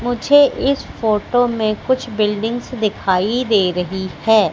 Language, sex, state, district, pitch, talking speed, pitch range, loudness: Hindi, female, Madhya Pradesh, Katni, 220 Hz, 135 wpm, 210-245 Hz, -17 LUFS